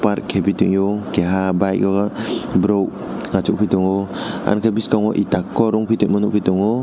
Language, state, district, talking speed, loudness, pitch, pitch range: Kokborok, Tripura, West Tripura, 115 wpm, -18 LUFS, 100 Hz, 95-105 Hz